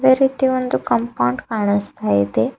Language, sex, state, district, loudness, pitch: Kannada, female, Karnataka, Bidar, -19 LUFS, 220 Hz